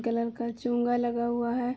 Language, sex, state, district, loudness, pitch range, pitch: Hindi, female, Uttar Pradesh, Jalaun, -29 LUFS, 235-245 Hz, 240 Hz